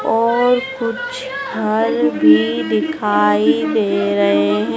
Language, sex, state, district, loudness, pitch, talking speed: Hindi, female, Madhya Pradesh, Dhar, -16 LUFS, 155 Hz, 100 wpm